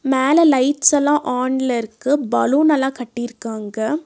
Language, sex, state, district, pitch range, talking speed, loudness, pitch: Tamil, female, Tamil Nadu, Nilgiris, 240-290 Hz, 90 wpm, -17 LUFS, 265 Hz